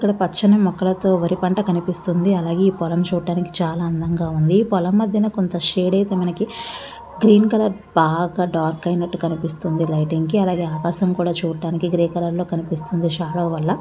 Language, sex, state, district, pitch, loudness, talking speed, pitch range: Telugu, female, Andhra Pradesh, Visakhapatnam, 175 Hz, -19 LUFS, 155 wpm, 170-190 Hz